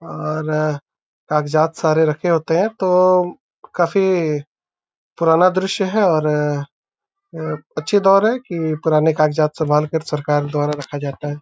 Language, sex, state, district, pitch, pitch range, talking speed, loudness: Hindi, male, Uttar Pradesh, Deoria, 155 Hz, 150-180 Hz, 130 wpm, -18 LUFS